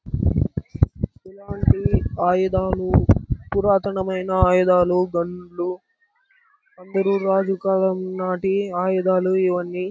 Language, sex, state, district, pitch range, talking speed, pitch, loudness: Telugu, male, Andhra Pradesh, Anantapur, 180-195 Hz, 65 wpm, 185 Hz, -21 LUFS